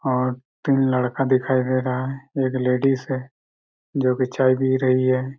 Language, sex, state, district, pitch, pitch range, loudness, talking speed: Hindi, male, Chhattisgarh, Raigarh, 130 Hz, 125-130 Hz, -21 LUFS, 180 wpm